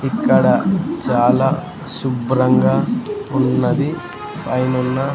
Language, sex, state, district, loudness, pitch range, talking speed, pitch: Telugu, male, Andhra Pradesh, Sri Satya Sai, -17 LUFS, 130-170 Hz, 60 wpm, 135 Hz